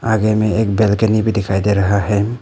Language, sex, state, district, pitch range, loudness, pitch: Hindi, male, Arunachal Pradesh, Papum Pare, 100-110 Hz, -15 LUFS, 105 Hz